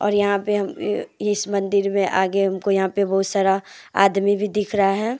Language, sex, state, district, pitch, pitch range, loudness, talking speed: Hindi, female, Jharkhand, Deoghar, 200 Hz, 195-205 Hz, -21 LUFS, 195 wpm